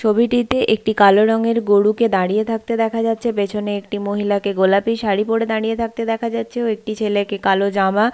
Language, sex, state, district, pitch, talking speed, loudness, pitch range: Bengali, female, West Bengal, Paschim Medinipur, 220 Hz, 190 wpm, -18 LUFS, 205-230 Hz